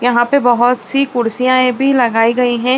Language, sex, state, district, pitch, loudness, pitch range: Hindi, female, Bihar, Saran, 245 Hz, -13 LUFS, 240-255 Hz